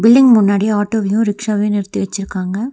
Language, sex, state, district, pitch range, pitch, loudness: Tamil, female, Tamil Nadu, Nilgiris, 200-220 Hz, 210 Hz, -15 LUFS